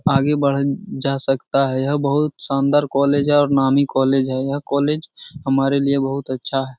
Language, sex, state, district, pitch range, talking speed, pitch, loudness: Hindi, male, Uttar Pradesh, Muzaffarnagar, 135-145 Hz, 185 wpm, 140 Hz, -18 LUFS